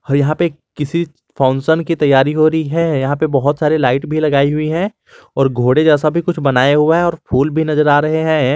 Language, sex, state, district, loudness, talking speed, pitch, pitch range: Hindi, male, Jharkhand, Garhwa, -14 LUFS, 240 wpm, 150 Hz, 140-160 Hz